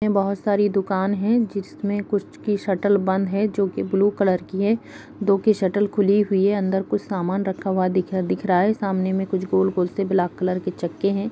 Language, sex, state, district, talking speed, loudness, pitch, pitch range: Kumaoni, female, Uttarakhand, Uttarkashi, 215 wpm, -22 LUFS, 195 Hz, 190-205 Hz